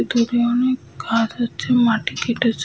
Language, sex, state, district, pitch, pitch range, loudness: Bengali, female, Jharkhand, Sahebganj, 235 Hz, 225-240 Hz, -20 LUFS